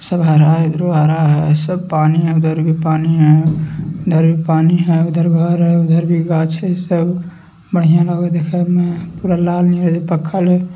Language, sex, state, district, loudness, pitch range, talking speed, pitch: Hindi, male, Bihar, Madhepura, -14 LUFS, 160-175 Hz, 175 wpm, 165 Hz